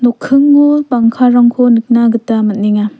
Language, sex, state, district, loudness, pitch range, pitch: Garo, female, Meghalaya, West Garo Hills, -10 LUFS, 230-255 Hz, 240 Hz